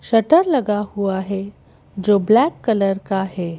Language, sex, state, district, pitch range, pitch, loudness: Hindi, female, Madhya Pradesh, Bhopal, 195-225 Hz, 200 Hz, -18 LUFS